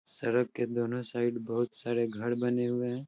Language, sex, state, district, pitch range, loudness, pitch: Hindi, male, Uttar Pradesh, Hamirpur, 120-125 Hz, -30 LUFS, 120 Hz